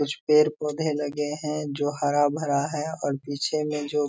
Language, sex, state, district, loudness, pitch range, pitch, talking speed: Hindi, male, Bihar, Darbhanga, -26 LUFS, 145-150 Hz, 150 Hz, 175 wpm